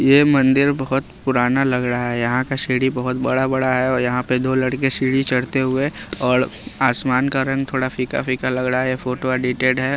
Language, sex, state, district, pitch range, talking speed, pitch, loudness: Hindi, male, Bihar, West Champaran, 125-135 Hz, 205 wpm, 130 Hz, -19 LUFS